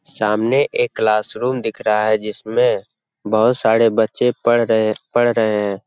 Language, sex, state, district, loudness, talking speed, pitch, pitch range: Hindi, male, Bihar, Jamui, -17 LUFS, 165 wpm, 115 Hz, 110-125 Hz